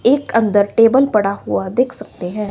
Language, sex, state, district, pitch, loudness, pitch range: Hindi, female, Himachal Pradesh, Shimla, 215 Hz, -16 LUFS, 205-250 Hz